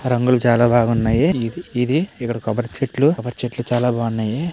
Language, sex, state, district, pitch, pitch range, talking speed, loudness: Telugu, male, Andhra Pradesh, Srikakulam, 120 Hz, 115-125 Hz, 135 wpm, -19 LUFS